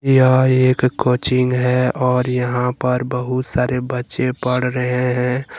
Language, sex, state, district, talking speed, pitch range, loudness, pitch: Hindi, male, Jharkhand, Ranchi, 140 wpm, 125-130 Hz, -17 LUFS, 125 Hz